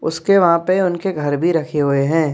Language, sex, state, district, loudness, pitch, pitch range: Hindi, male, Madhya Pradesh, Bhopal, -16 LUFS, 165 Hz, 150-180 Hz